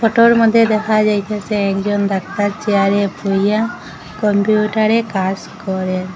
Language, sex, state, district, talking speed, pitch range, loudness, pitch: Bengali, female, Assam, Hailakandi, 105 wpm, 195-215 Hz, -16 LUFS, 205 Hz